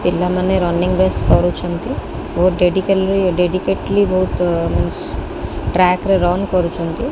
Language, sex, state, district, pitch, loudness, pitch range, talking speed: Odia, female, Odisha, Khordha, 180 Hz, -16 LUFS, 175-190 Hz, 100 wpm